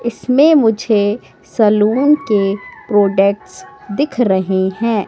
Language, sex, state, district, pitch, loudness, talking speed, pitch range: Hindi, female, Madhya Pradesh, Katni, 220 Hz, -14 LUFS, 95 wpm, 200-255 Hz